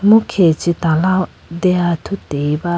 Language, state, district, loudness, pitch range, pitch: Idu Mishmi, Arunachal Pradesh, Lower Dibang Valley, -16 LUFS, 165-185 Hz, 175 Hz